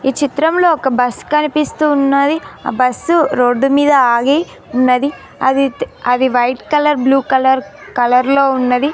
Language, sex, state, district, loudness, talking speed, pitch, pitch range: Telugu, female, Telangana, Mahabubabad, -14 LUFS, 135 wpm, 270 Hz, 255-295 Hz